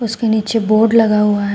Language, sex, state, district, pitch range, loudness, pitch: Hindi, female, Uttar Pradesh, Shamli, 210-225 Hz, -14 LUFS, 220 Hz